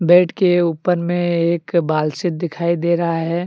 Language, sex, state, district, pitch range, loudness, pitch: Hindi, male, Jharkhand, Deoghar, 170-175 Hz, -18 LUFS, 170 Hz